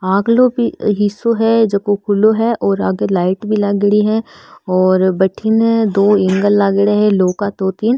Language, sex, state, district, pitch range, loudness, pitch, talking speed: Marwari, female, Rajasthan, Nagaur, 190-220 Hz, -14 LUFS, 205 Hz, 175 wpm